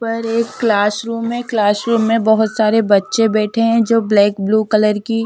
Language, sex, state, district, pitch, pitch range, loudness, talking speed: Hindi, female, Bihar, Patna, 220 Hz, 215-230 Hz, -15 LUFS, 215 wpm